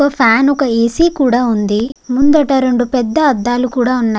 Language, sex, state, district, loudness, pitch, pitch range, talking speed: Telugu, female, Andhra Pradesh, Guntur, -13 LUFS, 250 Hz, 235-275 Hz, 170 wpm